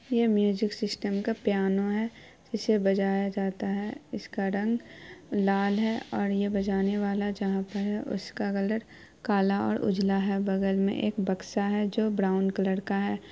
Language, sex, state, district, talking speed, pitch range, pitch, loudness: Hindi, female, Bihar, Araria, 165 wpm, 195-210 Hz, 200 Hz, -28 LUFS